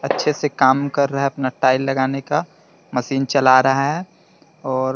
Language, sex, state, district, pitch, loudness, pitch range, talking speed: Hindi, male, Bihar, Vaishali, 135 Hz, -18 LUFS, 130-140 Hz, 205 wpm